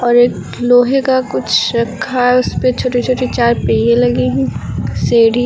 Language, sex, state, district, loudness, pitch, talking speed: Hindi, female, Uttar Pradesh, Lucknow, -14 LUFS, 240 Hz, 185 wpm